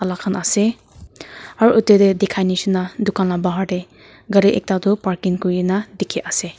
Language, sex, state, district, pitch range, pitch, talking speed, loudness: Nagamese, female, Nagaland, Kohima, 185-205 Hz, 195 Hz, 165 wpm, -18 LUFS